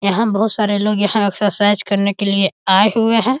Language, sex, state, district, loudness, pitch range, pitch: Hindi, male, Bihar, East Champaran, -15 LUFS, 200-220 Hz, 205 Hz